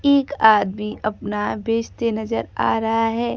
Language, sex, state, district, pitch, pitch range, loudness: Hindi, female, Bihar, Kaimur, 225 Hz, 215-235 Hz, -20 LUFS